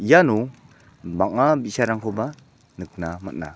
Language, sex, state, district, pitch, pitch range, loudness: Garo, male, Meghalaya, South Garo Hills, 110 Hz, 95-125 Hz, -22 LUFS